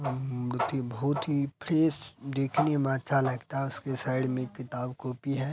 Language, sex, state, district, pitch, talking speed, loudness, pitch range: Hindi, female, Bihar, Araria, 135 Hz, 185 wpm, -30 LUFS, 130-140 Hz